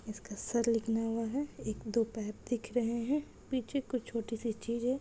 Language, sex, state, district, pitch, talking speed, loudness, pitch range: Hindi, female, Bihar, Kishanganj, 230 Hz, 205 wpm, -35 LUFS, 225-250 Hz